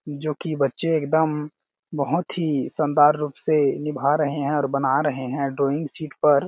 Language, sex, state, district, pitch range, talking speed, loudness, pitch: Hindi, male, Chhattisgarh, Balrampur, 140-155 Hz, 175 wpm, -22 LUFS, 150 Hz